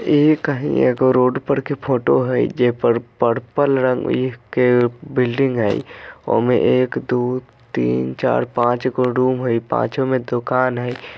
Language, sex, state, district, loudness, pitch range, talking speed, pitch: Bajjika, male, Bihar, Vaishali, -18 LUFS, 120-130 Hz, 150 wpm, 125 Hz